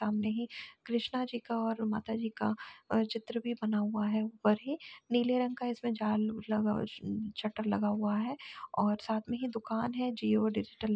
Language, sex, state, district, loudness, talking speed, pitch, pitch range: Hindi, female, Uttar Pradesh, Jalaun, -34 LUFS, 190 wpm, 220 Hz, 215-240 Hz